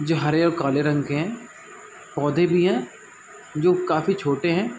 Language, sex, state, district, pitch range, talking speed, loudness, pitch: Hindi, male, Chhattisgarh, Raigarh, 145-175 Hz, 175 wpm, -22 LUFS, 160 Hz